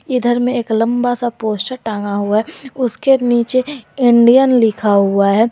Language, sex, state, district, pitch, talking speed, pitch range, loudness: Hindi, female, Jharkhand, Garhwa, 240 Hz, 165 wpm, 220-255 Hz, -14 LUFS